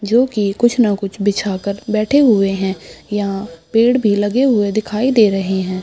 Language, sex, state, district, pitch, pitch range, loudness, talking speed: Hindi, female, Uttar Pradesh, Budaun, 205 Hz, 195-230 Hz, -16 LUFS, 175 wpm